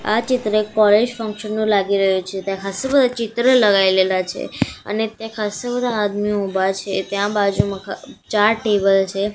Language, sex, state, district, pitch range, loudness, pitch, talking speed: Gujarati, female, Gujarat, Gandhinagar, 195-220 Hz, -19 LUFS, 210 Hz, 175 wpm